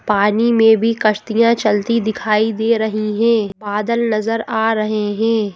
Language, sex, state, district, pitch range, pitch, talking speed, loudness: Hindi, female, Madhya Pradesh, Bhopal, 215-230 Hz, 220 Hz, 150 wpm, -16 LUFS